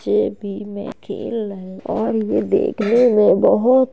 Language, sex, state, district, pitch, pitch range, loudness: Hindi, male, Uttar Pradesh, Jalaun, 220 Hz, 205-230 Hz, -18 LUFS